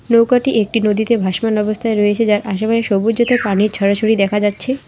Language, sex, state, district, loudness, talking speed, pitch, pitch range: Bengali, female, West Bengal, Alipurduar, -15 LUFS, 185 wpm, 215 Hz, 205-230 Hz